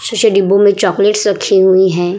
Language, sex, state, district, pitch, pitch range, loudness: Hindi, female, Bihar, Vaishali, 195 Hz, 190-205 Hz, -11 LUFS